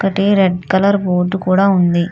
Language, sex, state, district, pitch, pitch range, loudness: Telugu, female, Telangana, Hyderabad, 190 Hz, 180-195 Hz, -14 LUFS